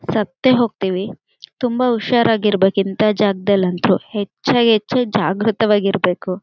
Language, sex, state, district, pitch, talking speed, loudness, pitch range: Kannada, female, Karnataka, Bellary, 210 Hz, 85 wpm, -17 LUFS, 195-230 Hz